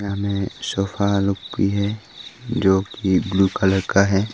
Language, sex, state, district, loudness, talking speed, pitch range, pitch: Hindi, male, Arunachal Pradesh, Papum Pare, -20 LUFS, 140 wpm, 95-100 Hz, 100 Hz